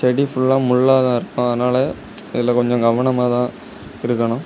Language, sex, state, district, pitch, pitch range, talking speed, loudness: Tamil, male, Tamil Nadu, Kanyakumari, 125 Hz, 120-130 Hz, 120 wpm, -18 LUFS